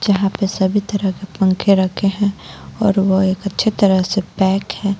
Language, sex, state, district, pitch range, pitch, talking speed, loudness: Hindi, female, Jharkhand, Garhwa, 190-200 Hz, 195 Hz, 190 wpm, -17 LUFS